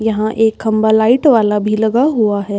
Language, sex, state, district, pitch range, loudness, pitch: Hindi, female, Uttar Pradesh, Budaun, 215-225 Hz, -13 LUFS, 220 Hz